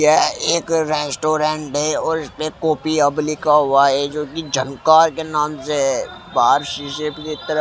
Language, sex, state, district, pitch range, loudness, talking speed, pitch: Hindi, male, Haryana, Rohtak, 145-155 Hz, -18 LUFS, 165 wpm, 150 Hz